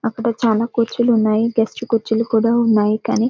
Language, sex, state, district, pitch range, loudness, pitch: Telugu, female, Telangana, Karimnagar, 220-235 Hz, -17 LUFS, 230 Hz